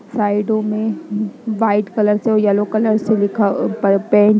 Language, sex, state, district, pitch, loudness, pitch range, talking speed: Hindi, female, Bihar, Jamui, 215 Hz, -17 LUFS, 205-220 Hz, 175 wpm